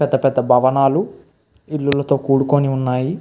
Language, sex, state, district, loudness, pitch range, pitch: Telugu, male, Andhra Pradesh, Visakhapatnam, -17 LUFS, 130-140 Hz, 135 Hz